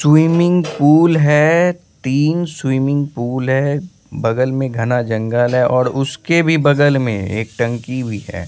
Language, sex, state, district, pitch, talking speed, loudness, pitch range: Hindi, male, Bihar, Katihar, 135 Hz, 150 wpm, -15 LUFS, 120-155 Hz